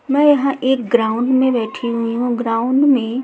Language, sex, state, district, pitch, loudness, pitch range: Hindi, female, Chhattisgarh, Raipur, 245 Hz, -16 LUFS, 230-265 Hz